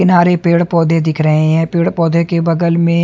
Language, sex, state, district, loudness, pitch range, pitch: Hindi, male, Haryana, Charkhi Dadri, -13 LUFS, 165-170 Hz, 170 Hz